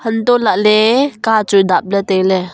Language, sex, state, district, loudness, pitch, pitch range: Wancho, female, Arunachal Pradesh, Longding, -13 LUFS, 215 Hz, 195-230 Hz